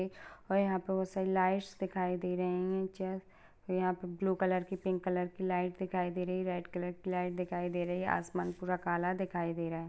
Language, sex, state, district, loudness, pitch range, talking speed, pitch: Hindi, female, Uttar Pradesh, Ghazipur, -35 LUFS, 180-190 Hz, 235 wpm, 185 Hz